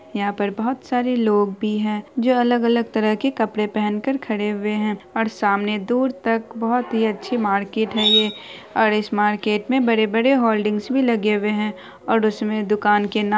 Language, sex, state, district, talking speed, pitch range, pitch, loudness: Hindi, female, Bihar, Araria, 195 wpm, 210-235 Hz, 215 Hz, -20 LUFS